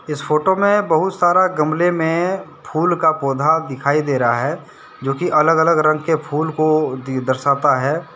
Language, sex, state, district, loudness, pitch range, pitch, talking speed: Hindi, male, Jharkhand, Deoghar, -17 LUFS, 140-170 Hz, 155 Hz, 170 wpm